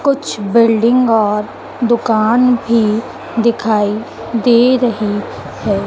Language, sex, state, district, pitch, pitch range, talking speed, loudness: Hindi, female, Madhya Pradesh, Dhar, 230 Hz, 215-240 Hz, 90 wpm, -14 LUFS